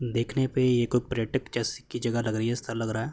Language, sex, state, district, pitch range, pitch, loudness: Hindi, male, Uttar Pradesh, Hamirpur, 115-125 Hz, 120 Hz, -28 LUFS